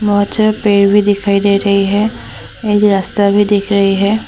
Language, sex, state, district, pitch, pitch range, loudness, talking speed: Hindi, female, Assam, Sonitpur, 205 Hz, 200-210 Hz, -12 LUFS, 195 wpm